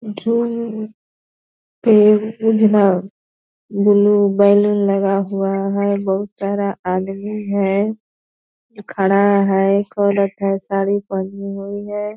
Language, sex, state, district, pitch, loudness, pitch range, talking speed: Hindi, female, Bihar, Purnia, 200 Hz, -17 LUFS, 195-210 Hz, 100 wpm